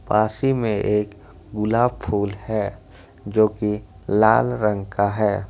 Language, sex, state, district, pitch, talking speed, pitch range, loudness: Hindi, male, Jharkhand, Ranchi, 105 Hz, 130 wpm, 100-110 Hz, -21 LUFS